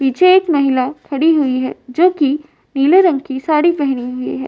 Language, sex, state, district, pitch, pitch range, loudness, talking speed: Hindi, female, Uttar Pradesh, Varanasi, 285 Hz, 260-325 Hz, -15 LUFS, 200 wpm